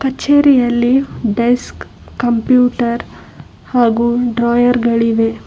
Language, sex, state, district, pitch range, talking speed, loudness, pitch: Kannada, female, Karnataka, Bangalore, 235-250 Hz, 65 wpm, -14 LUFS, 240 Hz